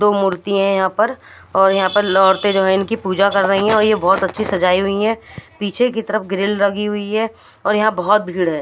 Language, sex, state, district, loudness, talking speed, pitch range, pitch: Hindi, female, Punjab, Fazilka, -16 LUFS, 230 wpm, 190-210 Hz, 200 Hz